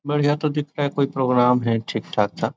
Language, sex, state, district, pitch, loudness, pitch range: Hindi, male, Chhattisgarh, Raigarh, 140 Hz, -21 LUFS, 125-145 Hz